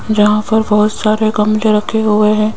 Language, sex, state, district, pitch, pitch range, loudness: Hindi, female, Rajasthan, Jaipur, 215 Hz, 210-215 Hz, -13 LUFS